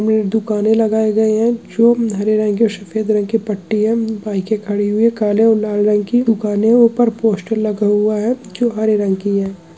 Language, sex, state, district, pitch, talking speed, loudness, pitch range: Hindi, male, Chhattisgarh, Kabirdham, 215 Hz, 215 wpm, -16 LUFS, 210-225 Hz